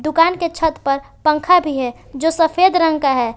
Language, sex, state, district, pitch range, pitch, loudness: Hindi, female, Jharkhand, Palamu, 275-335 Hz, 320 Hz, -16 LUFS